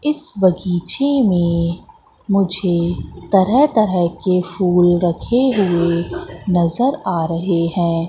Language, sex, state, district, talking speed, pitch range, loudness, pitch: Hindi, female, Madhya Pradesh, Katni, 105 wpm, 170-205 Hz, -17 LUFS, 180 Hz